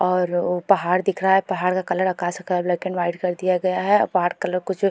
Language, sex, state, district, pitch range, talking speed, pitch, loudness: Hindi, female, Uttarakhand, Tehri Garhwal, 180-185 Hz, 255 wpm, 180 Hz, -21 LUFS